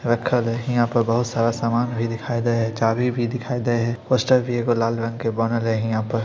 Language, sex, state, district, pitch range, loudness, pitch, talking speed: Maithili, male, Bihar, Samastipur, 115-120 Hz, -22 LUFS, 115 Hz, 260 wpm